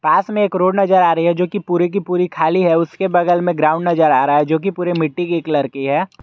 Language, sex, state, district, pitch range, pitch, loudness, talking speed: Hindi, male, Jharkhand, Garhwa, 160-185 Hz, 175 Hz, -16 LUFS, 300 wpm